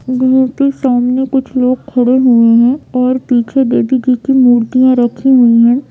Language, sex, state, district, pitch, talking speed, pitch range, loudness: Hindi, female, Bihar, Sitamarhi, 255 Hz, 160 wpm, 245-260 Hz, -11 LUFS